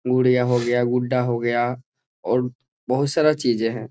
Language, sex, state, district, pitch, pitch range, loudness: Hindi, male, Bihar, Jahanabad, 125 Hz, 120-130 Hz, -21 LUFS